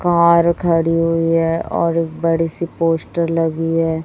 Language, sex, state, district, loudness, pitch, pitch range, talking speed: Hindi, female, Chhattisgarh, Raipur, -17 LUFS, 165 Hz, 165-170 Hz, 165 wpm